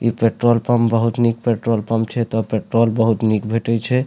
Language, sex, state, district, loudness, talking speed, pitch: Maithili, male, Bihar, Supaul, -18 LUFS, 205 wpm, 115 Hz